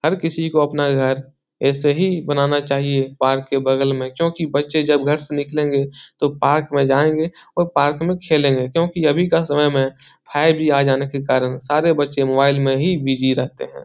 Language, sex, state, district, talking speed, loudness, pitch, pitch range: Hindi, male, Bihar, Jahanabad, 200 wpm, -18 LUFS, 145 Hz, 135-155 Hz